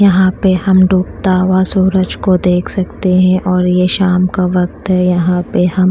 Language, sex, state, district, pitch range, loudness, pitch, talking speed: Hindi, female, Haryana, Charkhi Dadri, 180-190 Hz, -12 LUFS, 185 Hz, 190 wpm